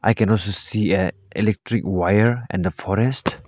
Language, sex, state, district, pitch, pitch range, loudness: English, male, Arunachal Pradesh, Lower Dibang Valley, 105 Hz, 95-110 Hz, -21 LUFS